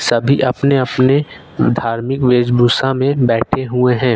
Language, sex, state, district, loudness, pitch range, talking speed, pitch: Hindi, male, Jharkhand, Ranchi, -14 LUFS, 120-135 Hz, 130 wpm, 125 Hz